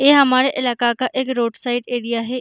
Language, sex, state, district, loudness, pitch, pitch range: Hindi, female, Uttar Pradesh, Jyotiba Phule Nagar, -18 LUFS, 250 Hz, 240-260 Hz